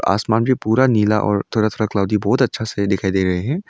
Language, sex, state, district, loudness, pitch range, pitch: Hindi, male, Arunachal Pradesh, Longding, -18 LUFS, 100-115 Hz, 110 Hz